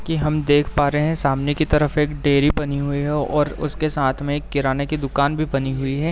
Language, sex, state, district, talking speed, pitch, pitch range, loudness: Hindi, male, Uttar Pradesh, Deoria, 255 wpm, 145 Hz, 140-150 Hz, -20 LUFS